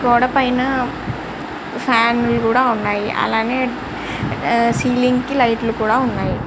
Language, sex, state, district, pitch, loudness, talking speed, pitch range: Telugu, male, Andhra Pradesh, Srikakulam, 240 Hz, -18 LUFS, 120 wpm, 230-255 Hz